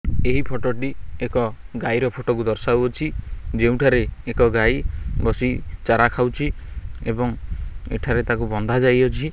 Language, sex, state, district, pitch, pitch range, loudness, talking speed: Odia, male, Odisha, Khordha, 120 Hz, 90-125 Hz, -21 LUFS, 120 wpm